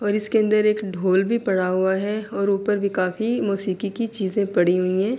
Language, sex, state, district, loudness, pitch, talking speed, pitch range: Urdu, female, Andhra Pradesh, Anantapur, -22 LUFS, 200 Hz, 220 wpm, 190-215 Hz